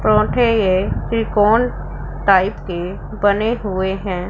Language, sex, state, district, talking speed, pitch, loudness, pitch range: Hindi, female, Punjab, Pathankot, 125 wpm, 195 Hz, -17 LUFS, 185-215 Hz